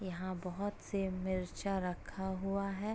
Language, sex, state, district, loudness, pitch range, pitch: Hindi, female, Uttar Pradesh, Etah, -39 LUFS, 185-195 Hz, 190 Hz